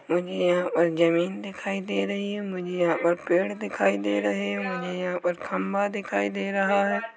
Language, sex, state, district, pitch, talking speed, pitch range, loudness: Hindi, male, Chhattisgarh, Korba, 180 Hz, 200 wpm, 165-195 Hz, -26 LUFS